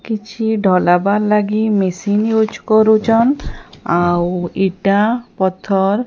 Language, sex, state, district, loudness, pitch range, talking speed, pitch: Odia, female, Odisha, Sambalpur, -15 LUFS, 190-220 Hz, 90 wpm, 205 Hz